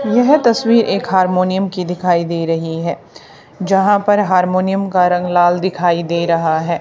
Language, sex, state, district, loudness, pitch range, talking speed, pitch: Hindi, female, Haryana, Charkhi Dadri, -15 LUFS, 170-195 Hz, 165 wpm, 180 Hz